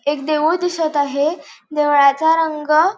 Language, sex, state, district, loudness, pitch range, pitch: Marathi, female, Goa, North and South Goa, -17 LUFS, 290-320 Hz, 300 Hz